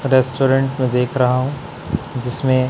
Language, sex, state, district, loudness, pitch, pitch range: Hindi, male, Chhattisgarh, Raipur, -18 LUFS, 130 Hz, 125-135 Hz